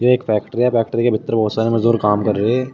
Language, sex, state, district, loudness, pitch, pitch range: Hindi, male, Uttar Pradesh, Shamli, -17 LUFS, 115 Hz, 105-120 Hz